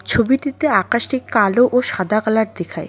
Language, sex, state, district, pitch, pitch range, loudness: Bengali, female, West Bengal, Cooch Behar, 235 Hz, 205-250 Hz, -17 LUFS